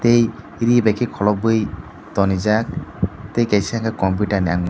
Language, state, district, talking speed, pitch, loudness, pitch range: Kokborok, Tripura, Dhalai, 125 wpm, 105 Hz, -19 LUFS, 100-115 Hz